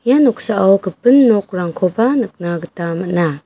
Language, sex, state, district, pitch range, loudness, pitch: Garo, female, Meghalaya, West Garo Hills, 175-235 Hz, -15 LUFS, 190 Hz